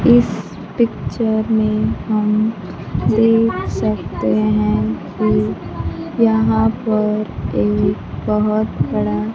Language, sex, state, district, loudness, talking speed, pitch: Hindi, female, Bihar, Kaimur, -18 LUFS, 85 wpm, 210 Hz